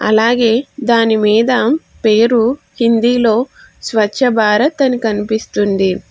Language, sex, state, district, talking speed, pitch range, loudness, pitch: Telugu, female, Telangana, Hyderabad, 100 wpm, 215-245 Hz, -13 LUFS, 230 Hz